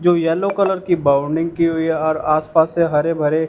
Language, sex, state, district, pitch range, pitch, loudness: Hindi, male, Punjab, Fazilka, 155-170 Hz, 160 Hz, -17 LUFS